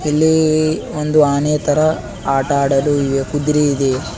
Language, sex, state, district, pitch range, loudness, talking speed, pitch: Kannada, male, Karnataka, Bidar, 140-155 Hz, -16 LUFS, 130 wpm, 145 Hz